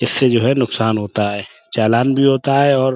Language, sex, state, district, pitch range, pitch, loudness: Urdu, male, Uttar Pradesh, Budaun, 110-135 Hz, 125 Hz, -16 LUFS